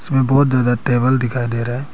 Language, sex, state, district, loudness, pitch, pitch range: Hindi, male, Arunachal Pradesh, Papum Pare, -16 LUFS, 125 Hz, 120-130 Hz